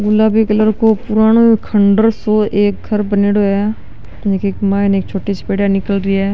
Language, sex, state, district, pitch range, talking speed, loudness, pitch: Rajasthani, male, Rajasthan, Nagaur, 200-215 Hz, 180 wpm, -14 LUFS, 205 Hz